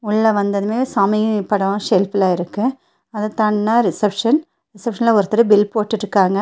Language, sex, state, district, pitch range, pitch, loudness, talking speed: Tamil, female, Tamil Nadu, Nilgiris, 200-230 Hz, 215 Hz, -17 LUFS, 110 wpm